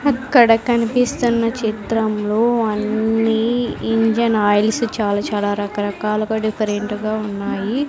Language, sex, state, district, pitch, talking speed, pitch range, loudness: Telugu, female, Andhra Pradesh, Sri Satya Sai, 220 Hz, 90 wpm, 210-235 Hz, -18 LUFS